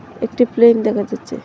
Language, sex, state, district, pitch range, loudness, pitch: Bengali, female, Tripura, Dhalai, 225-240 Hz, -15 LUFS, 230 Hz